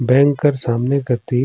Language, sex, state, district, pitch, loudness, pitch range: Surgujia, male, Chhattisgarh, Sarguja, 130 Hz, -17 LUFS, 125-140 Hz